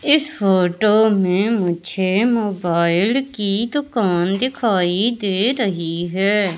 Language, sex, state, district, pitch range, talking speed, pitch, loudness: Hindi, male, Madhya Pradesh, Katni, 180-230 Hz, 100 wpm, 200 Hz, -18 LUFS